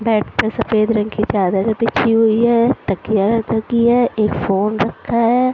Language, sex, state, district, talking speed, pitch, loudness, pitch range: Hindi, female, Delhi, New Delhi, 185 wpm, 225 Hz, -16 LUFS, 215-235 Hz